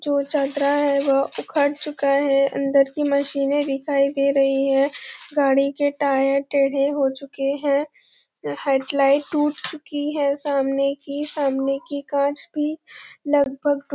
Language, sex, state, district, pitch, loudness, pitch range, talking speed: Hindi, female, Chhattisgarh, Bastar, 280 Hz, -21 LUFS, 275-290 Hz, 140 wpm